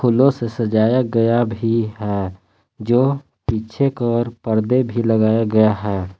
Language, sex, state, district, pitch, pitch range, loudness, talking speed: Hindi, male, Jharkhand, Palamu, 115 Hz, 110-120 Hz, -18 LUFS, 145 wpm